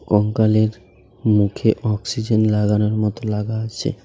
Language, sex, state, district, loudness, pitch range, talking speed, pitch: Bengali, male, West Bengal, Alipurduar, -19 LUFS, 105-110 Hz, 120 wpm, 110 Hz